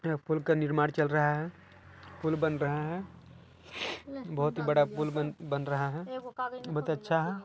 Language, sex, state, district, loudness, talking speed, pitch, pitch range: Hindi, male, Chhattisgarh, Balrampur, -32 LUFS, 170 wpm, 155 Hz, 150-160 Hz